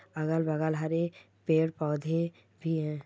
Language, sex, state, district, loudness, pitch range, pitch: Hindi, male, Chhattisgarh, Sukma, -31 LUFS, 155-165 Hz, 160 Hz